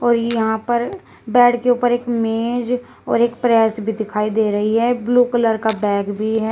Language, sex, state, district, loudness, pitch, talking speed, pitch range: Hindi, female, Uttar Pradesh, Shamli, -18 LUFS, 230 Hz, 200 wpm, 220-240 Hz